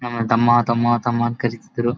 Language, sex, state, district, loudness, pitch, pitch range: Kannada, male, Karnataka, Bellary, -19 LUFS, 120 Hz, 115-120 Hz